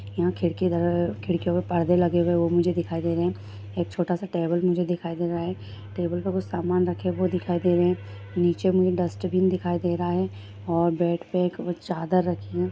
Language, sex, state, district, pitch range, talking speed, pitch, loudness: Hindi, female, Bihar, Jahanabad, 170-180 Hz, 215 wpm, 175 Hz, -25 LUFS